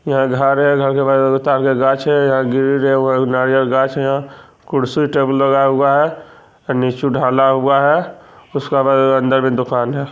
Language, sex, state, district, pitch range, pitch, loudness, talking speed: Magahi, male, Bihar, Jamui, 130-140 Hz, 135 Hz, -15 LUFS, 155 wpm